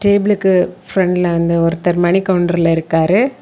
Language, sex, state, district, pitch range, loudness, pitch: Tamil, female, Tamil Nadu, Kanyakumari, 170-195 Hz, -14 LUFS, 180 Hz